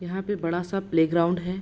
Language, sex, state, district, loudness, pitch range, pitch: Hindi, female, Bihar, Begusarai, -25 LUFS, 170-190 Hz, 180 Hz